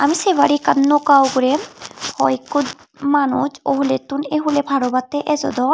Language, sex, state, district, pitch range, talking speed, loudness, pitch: Chakma, female, Tripura, Unakoti, 265-290 Hz, 145 wpm, -17 LUFS, 280 Hz